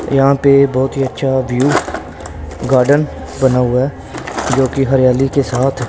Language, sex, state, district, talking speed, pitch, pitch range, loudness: Hindi, male, Punjab, Pathankot, 155 wpm, 135 Hz, 125-135 Hz, -14 LUFS